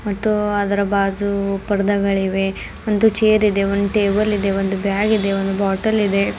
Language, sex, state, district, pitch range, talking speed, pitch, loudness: Kannada, female, Karnataka, Bidar, 195-210 Hz, 140 wpm, 200 Hz, -18 LUFS